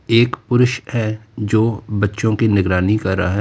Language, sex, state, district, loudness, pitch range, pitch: Hindi, male, Uttar Pradesh, Lalitpur, -17 LUFS, 100-115 Hz, 110 Hz